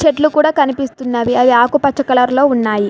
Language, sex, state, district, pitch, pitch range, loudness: Telugu, female, Telangana, Mahabubabad, 265 Hz, 245-290 Hz, -13 LUFS